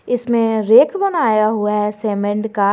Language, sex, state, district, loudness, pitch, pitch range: Hindi, male, Jharkhand, Garhwa, -16 LUFS, 215 Hz, 210-230 Hz